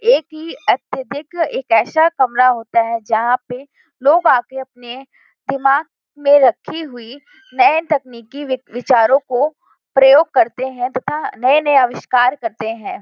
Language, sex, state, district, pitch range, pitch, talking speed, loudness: Hindi, female, Uttar Pradesh, Varanasi, 250-310 Hz, 270 Hz, 145 wpm, -16 LUFS